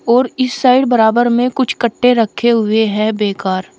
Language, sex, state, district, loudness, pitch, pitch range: Hindi, female, Uttar Pradesh, Shamli, -13 LUFS, 235 Hz, 220-250 Hz